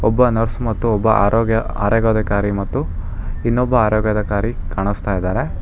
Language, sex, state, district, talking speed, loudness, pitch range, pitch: Kannada, male, Karnataka, Bangalore, 130 wpm, -18 LUFS, 100-115 Hz, 110 Hz